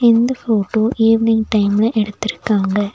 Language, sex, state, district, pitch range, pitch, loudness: Tamil, female, Tamil Nadu, Nilgiris, 205-225 Hz, 220 Hz, -16 LUFS